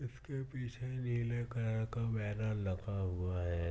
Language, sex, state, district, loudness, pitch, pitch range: Hindi, female, Maharashtra, Pune, -39 LUFS, 115 Hz, 100-120 Hz